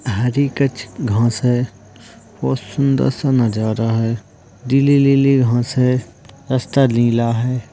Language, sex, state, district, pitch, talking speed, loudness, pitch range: Hindi, male, Maharashtra, Dhule, 120 Hz, 110 wpm, -17 LUFS, 115-135 Hz